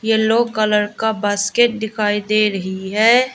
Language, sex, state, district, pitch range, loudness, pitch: Hindi, female, Arunachal Pradesh, Lower Dibang Valley, 205-225 Hz, -17 LUFS, 215 Hz